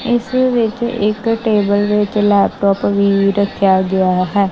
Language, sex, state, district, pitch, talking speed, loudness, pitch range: Punjabi, male, Punjab, Kapurthala, 205 Hz, 130 wpm, -15 LUFS, 200-225 Hz